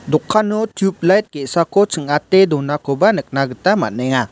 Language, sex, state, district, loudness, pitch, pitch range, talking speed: Garo, male, Meghalaya, West Garo Hills, -16 LUFS, 155 Hz, 135-195 Hz, 110 wpm